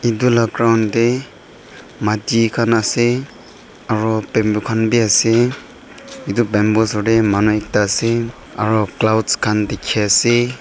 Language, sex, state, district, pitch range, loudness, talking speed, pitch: Nagamese, male, Nagaland, Dimapur, 105-120 Hz, -16 LUFS, 135 wpm, 115 Hz